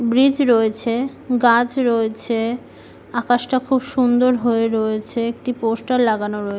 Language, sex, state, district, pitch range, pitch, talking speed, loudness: Bengali, female, West Bengal, Malda, 225-250 Hz, 235 Hz, 120 wpm, -18 LUFS